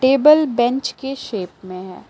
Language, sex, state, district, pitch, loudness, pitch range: Hindi, female, Jharkhand, Palamu, 250 Hz, -17 LUFS, 190-270 Hz